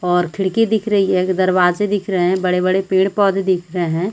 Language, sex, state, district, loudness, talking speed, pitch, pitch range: Hindi, female, Chhattisgarh, Sarguja, -17 LUFS, 220 wpm, 185 Hz, 180-195 Hz